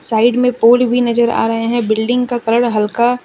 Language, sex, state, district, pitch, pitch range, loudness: Hindi, female, Jharkhand, Deoghar, 235 Hz, 225-245 Hz, -14 LUFS